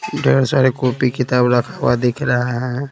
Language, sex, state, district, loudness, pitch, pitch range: Hindi, male, Bihar, Patna, -17 LUFS, 125 Hz, 125-135 Hz